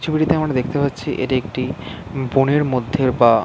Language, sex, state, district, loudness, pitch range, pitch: Bengali, male, West Bengal, Jhargram, -19 LUFS, 125-145 Hz, 130 Hz